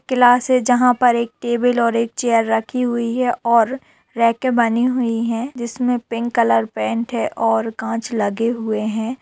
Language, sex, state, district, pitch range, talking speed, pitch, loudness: Hindi, female, Bihar, Samastipur, 225-245 Hz, 180 wpm, 235 Hz, -18 LUFS